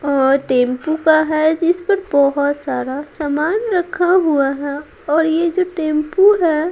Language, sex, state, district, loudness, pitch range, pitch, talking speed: Hindi, female, Bihar, Patna, -16 LUFS, 285-350 Hz, 310 Hz, 150 wpm